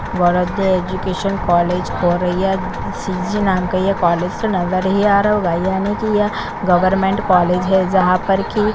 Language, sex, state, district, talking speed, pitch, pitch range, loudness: Hindi, female, Chhattisgarh, Korba, 180 wpm, 185 Hz, 180-195 Hz, -17 LUFS